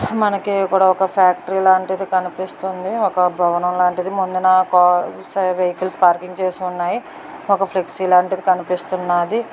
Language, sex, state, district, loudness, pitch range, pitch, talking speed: Telugu, female, Karnataka, Bellary, -17 LUFS, 180-190 Hz, 185 Hz, 120 wpm